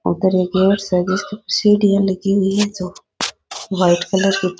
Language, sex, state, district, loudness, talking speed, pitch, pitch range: Rajasthani, female, Rajasthan, Nagaur, -17 LUFS, 185 wpm, 195 Hz, 185-200 Hz